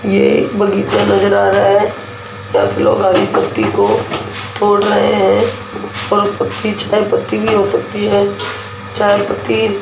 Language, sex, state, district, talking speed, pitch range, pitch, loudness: Hindi, female, Rajasthan, Jaipur, 165 wpm, 200-210 Hz, 205 Hz, -14 LUFS